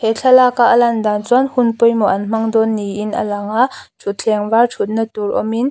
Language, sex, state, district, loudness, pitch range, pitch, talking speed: Mizo, female, Mizoram, Aizawl, -15 LUFS, 210-240 Hz, 225 Hz, 200 wpm